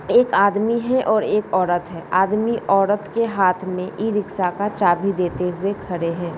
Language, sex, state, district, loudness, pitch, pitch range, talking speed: Hindi, male, Bihar, Bhagalpur, -20 LUFS, 195 Hz, 180-210 Hz, 190 wpm